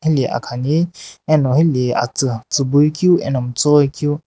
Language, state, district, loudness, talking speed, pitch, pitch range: Sumi, Nagaland, Dimapur, -16 LUFS, 140 wpm, 145 Hz, 130-155 Hz